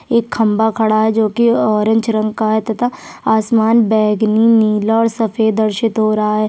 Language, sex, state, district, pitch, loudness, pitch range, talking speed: Hindi, female, Chhattisgarh, Sukma, 220 Hz, -14 LUFS, 215-225 Hz, 185 wpm